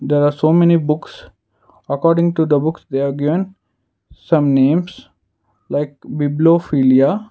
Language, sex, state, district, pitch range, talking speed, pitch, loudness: English, male, Karnataka, Bangalore, 135-165 Hz, 130 wpm, 145 Hz, -16 LUFS